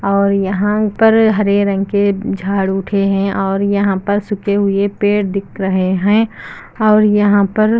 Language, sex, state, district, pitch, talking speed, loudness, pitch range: Hindi, female, Andhra Pradesh, Anantapur, 200 Hz, 160 wpm, -14 LUFS, 195-210 Hz